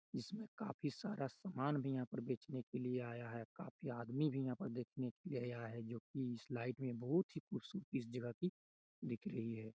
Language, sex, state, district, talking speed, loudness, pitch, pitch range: Hindi, male, Chhattisgarh, Raigarh, 215 wpm, -45 LUFS, 125 Hz, 120-145 Hz